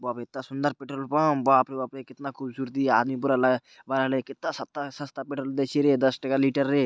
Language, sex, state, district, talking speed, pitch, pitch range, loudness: Maithili, male, Bihar, Purnia, 235 wpm, 135 Hz, 130-140 Hz, -26 LUFS